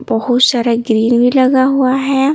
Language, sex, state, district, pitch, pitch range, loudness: Hindi, female, Bihar, Patna, 255 Hz, 235-265 Hz, -12 LUFS